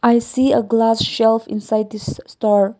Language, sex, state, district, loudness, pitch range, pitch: English, female, Nagaland, Kohima, -17 LUFS, 215-230 Hz, 225 Hz